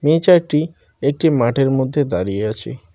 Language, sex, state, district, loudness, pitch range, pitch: Bengali, male, West Bengal, Cooch Behar, -17 LUFS, 120-155 Hz, 140 Hz